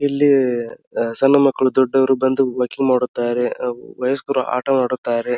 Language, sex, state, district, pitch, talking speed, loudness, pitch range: Kannada, male, Karnataka, Dharwad, 130 Hz, 110 wpm, -18 LUFS, 125-135 Hz